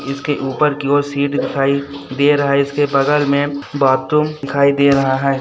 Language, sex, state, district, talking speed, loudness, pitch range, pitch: Hindi, male, Chhattisgarh, Raigarh, 190 wpm, -16 LUFS, 140-145 Hz, 140 Hz